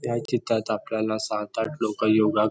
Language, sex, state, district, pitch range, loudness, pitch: Marathi, male, Maharashtra, Nagpur, 110-115 Hz, -25 LUFS, 110 Hz